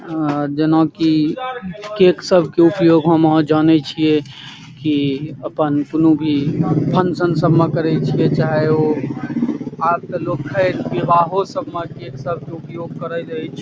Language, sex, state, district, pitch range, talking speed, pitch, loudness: Maithili, male, Bihar, Saharsa, 155-170 Hz, 155 wpm, 160 Hz, -17 LUFS